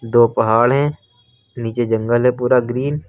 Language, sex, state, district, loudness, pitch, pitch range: Hindi, male, Uttar Pradesh, Lucknow, -17 LUFS, 120 Hz, 115-125 Hz